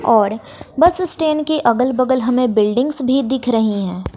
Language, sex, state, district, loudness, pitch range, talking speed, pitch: Hindi, female, Bihar, West Champaran, -16 LUFS, 225-295 Hz, 170 wpm, 255 Hz